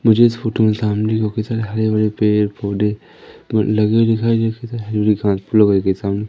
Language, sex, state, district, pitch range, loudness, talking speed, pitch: Hindi, male, Madhya Pradesh, Umaria, 105-110 Hz, -17 LUFS, 155 wpm, 110 Hz